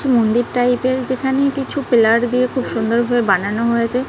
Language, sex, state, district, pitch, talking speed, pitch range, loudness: Bengali, female, West Bengal, North 24 Parganas, 245 Hz, 160 wpm, 235-260 Hz, -17 LUFS